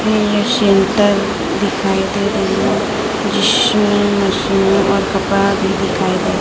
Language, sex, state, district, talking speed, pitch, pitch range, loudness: Hindi, female, Chhattisgarh, Raipur, 120 wpm, 205 Hz, 195-210 Hz, -14 LUFS